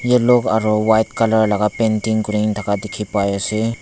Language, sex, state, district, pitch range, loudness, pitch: Nagamese, male, Nagaland, Dimapur, 105-110 Hz, -17 LUFS, 110 Hz